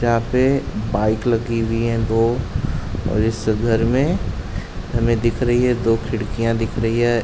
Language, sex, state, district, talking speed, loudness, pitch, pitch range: Hindi, male, Uttar Pradesh, Jalaun, 165 wpm, -20 LUFS, 115 Hz, 110-120 Hz